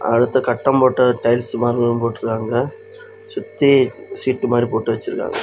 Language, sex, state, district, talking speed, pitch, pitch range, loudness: Tamil, male, Tamil Nadu, Kanyakumari, 120 wpm, 120 Hz, 120-135 Hz, -18 LUFS